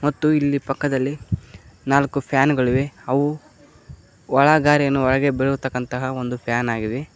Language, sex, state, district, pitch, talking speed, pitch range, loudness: Kannada, male, Karnataka, Koppal, 135 Hz, 110 wpm, 125-140 Hz, -20 LUFS